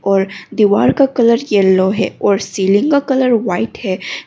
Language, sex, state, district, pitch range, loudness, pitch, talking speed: Hindi, female, Arunachal Pradesh, Longding, 195-235 Hz, -14 LUFS, 205 Hz, 170 wpm